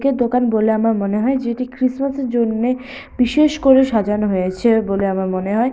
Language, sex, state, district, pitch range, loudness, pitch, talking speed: Bengali, female, West Bengal, Purulia, 210-260 Hz, -17 LUFS, 235 Hz, 190 wpm